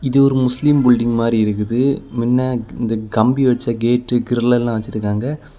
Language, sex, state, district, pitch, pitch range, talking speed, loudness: Tamil, male, Tamil Nadu, Kanyakumari, 120 Hz, 115-130 Hz, 140 wpm, -17 LUFS